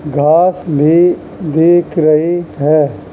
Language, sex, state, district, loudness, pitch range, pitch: Hindi, male, Uttar Pradesh, Jalaun, -12 LUFS, 150-175 Hz, 155 Hz